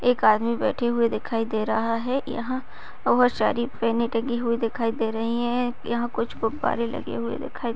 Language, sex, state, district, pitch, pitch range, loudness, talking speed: Hindi, female, Maharashtra, Nagpur, 235 Hz, 225-240 Hz, -25 LUFS, 185 wpm